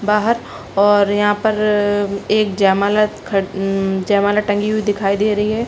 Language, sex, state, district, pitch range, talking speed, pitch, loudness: Hindi, female, Uttar Pradesh, Budaun, 200-210 Hz, 160 wpm, 205 Hz, -16 LUFS